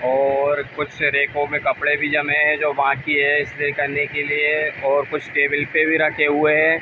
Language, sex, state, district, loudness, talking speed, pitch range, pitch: Hindi, male, Uttar Pradesh, Ghazipur, -18 LUFS, 210 wpm, 140-150 Hz, 145 Hz